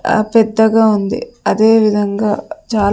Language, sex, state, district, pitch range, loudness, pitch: Telugu, female, Andhra Pradesh, Sri Satya Sai, 210-225 Hz, -14 LUFS, 220 Hz